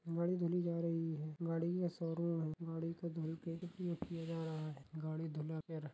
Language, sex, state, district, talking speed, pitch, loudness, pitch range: Hindi, male, Uttar Pradesh, Jyotiba Phule Nagar, 220 wpm, 165 Hz, -41 LUFS, 160-170 Hz